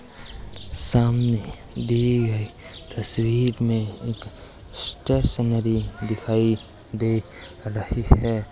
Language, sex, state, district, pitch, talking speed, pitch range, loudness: Hindi, male, Rajasthan, Bikaner, 110 Hz, 75 wpm, 105-115 Hz, -24 LUFS